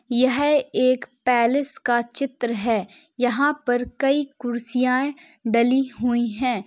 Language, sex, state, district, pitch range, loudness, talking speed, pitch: Hindi, female, Uttar Pradesh, Jalaun, 240-275 Hz, -22 LUFS, 115 wpm, 250 Hz